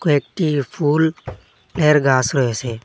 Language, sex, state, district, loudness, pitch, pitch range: Bengali, male, Assam, Hailakandi, -18 LUFS, 140 Hz, 120-150 Hz